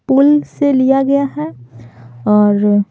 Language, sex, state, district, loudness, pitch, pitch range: Hindi, female, Bihar, Patna, -13 LUFS, 210 Hz, 170-280 Hz